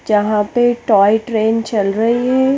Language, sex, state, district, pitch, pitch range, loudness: Hindi, female, Chandigarh, Chandigarh, 225 Hz, 210-240 Hz, -15 LUFS